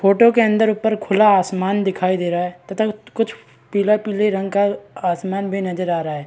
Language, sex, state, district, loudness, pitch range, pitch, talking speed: Hindi, female, Bihar, East Champaran, -19 LUFS, 185-210 Hz, 195 Hz, 200 wpm